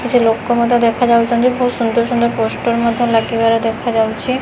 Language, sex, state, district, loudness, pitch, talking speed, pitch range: Odia, female, Odisha, Khordha, -15 LUFS, 235 Hz, 165 wpm, 230-240 Hz